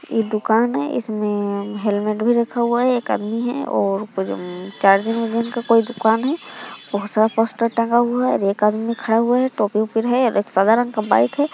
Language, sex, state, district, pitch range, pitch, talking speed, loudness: Hindi, female, Bihar, Muzaffarpur, 210-240 Hz, 225 Hz, 215 wpm, -19 LUFS